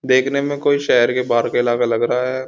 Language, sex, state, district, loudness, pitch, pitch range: Hindi, male, Uttar Pradesh, Gorakhpur, -17 LUFS, 125 Hz, 120-135 Hz